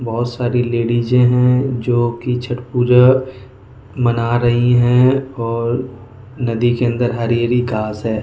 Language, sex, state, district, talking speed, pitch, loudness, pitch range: Hindi, male, Goa, North and South Goa, 140 wpm, 120 Hz, -16 LUFS, 120-125 Hz